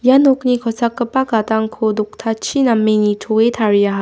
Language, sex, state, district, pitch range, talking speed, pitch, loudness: Garo, female, Meghalaya, West Garo Hills, 215-245 Hz, 120 wpm, 225 Hz, -16 LUFS